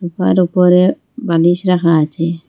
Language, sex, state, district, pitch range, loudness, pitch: Bengali, female, Assam, Hailakandi, 165-185 Hz, -13 LUFS, 175 Hz